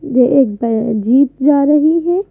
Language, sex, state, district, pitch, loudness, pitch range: Hindi, female, Madhya Pradesh, Bhopal, 275 Hz, -13 LUFS, 245-300 Hz